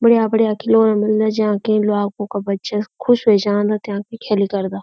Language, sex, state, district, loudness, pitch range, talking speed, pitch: Garhwali, female, Uttarakhand, Uttarkashi, -17 LUFS, 205-220 Hz, 185 wpm, 210 Hz